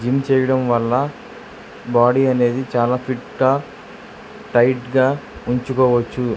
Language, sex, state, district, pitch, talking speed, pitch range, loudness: Telugu, male, Andhra Pradesh, Krishna, 130 Hz, 105 wpm, 120-135 Hz, -18 LUFS